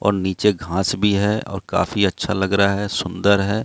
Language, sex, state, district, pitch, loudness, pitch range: Hindi, male, Bihar, Katihar, 100 Hz, -20 LUFS, 95-105 Hz